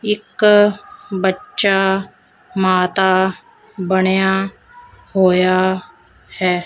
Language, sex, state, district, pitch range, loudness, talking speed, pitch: Punjabi, female, Punjab, Fazilka, 185-205 Hz, -16 LUFS, 55 wpm, 190 Hz